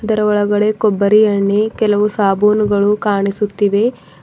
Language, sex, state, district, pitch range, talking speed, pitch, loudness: Kannada, female, Karnataka, Bidar, 200-215 Hz, 100 wpm, 210 Hz, -14 LUFS